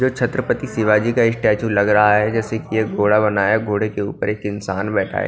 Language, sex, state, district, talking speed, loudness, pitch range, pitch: Hindi, male, Punjab, Kapurthala, 225 wpm, -18 LUFS, 105-115 Hz, 105 Hz